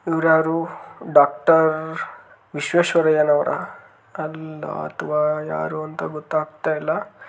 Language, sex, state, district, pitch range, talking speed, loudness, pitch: Kannada, male, Karnataka, Dharwad, 150-165 Hz, 65 wpm, -21 LUFS, 155 Hz